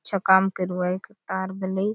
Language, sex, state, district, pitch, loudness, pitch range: Halbi, female, Chhattisgarh, Bastar, 190 Hz, -24 LUFS, 190-195 Hz